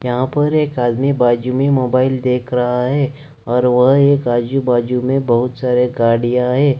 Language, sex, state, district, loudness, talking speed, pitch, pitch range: Hindi, male, Jharkhand, Deoghar, -15 LUFS, 175 wpm, 125 Hz, 125-135 Hz